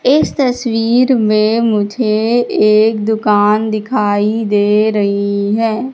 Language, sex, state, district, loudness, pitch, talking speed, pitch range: Hindi, female, Madhya Pradesh, Katni, -13 LUFS, 220 Hz, 100 wpm, 210-230 Hz